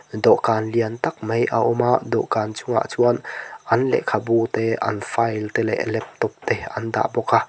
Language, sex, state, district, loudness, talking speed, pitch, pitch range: Mizo, male, Mizoram, Aizawl, -21 LUFS, 185 wpm, 115 Hz, 110-115 Hz